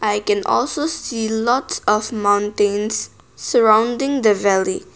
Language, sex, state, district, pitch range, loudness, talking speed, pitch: English, female, Nagaland, Kohima, 205-245 Hz, -18 LUFS, 120 wpm, 215 Hz